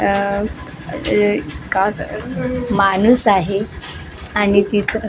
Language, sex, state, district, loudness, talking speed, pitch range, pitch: Marathi, female, Maharashtra, Gondia, -17 LUFS, 105 wpm, 200-220 Hz, 205 Hz